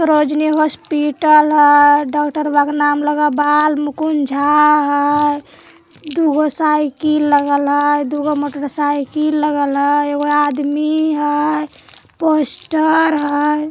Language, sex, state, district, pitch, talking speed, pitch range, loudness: Hindi, female, Bihar, Begusarai, 295 Hz, 125 wpm, 290-305 Hz, -15 LUFS